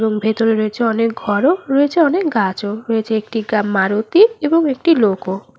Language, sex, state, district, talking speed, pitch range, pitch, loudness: Bengali, female, West Bengal, Malda, 150 wpm, 210-290 Hz, 225 Hz, -16 LUFS